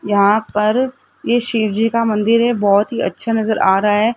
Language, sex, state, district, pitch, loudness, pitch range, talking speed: Hindi, female, Rajasthan, Jaipur, 220 Hz, -16 LUFS, 210-230 Hz, 200 wpm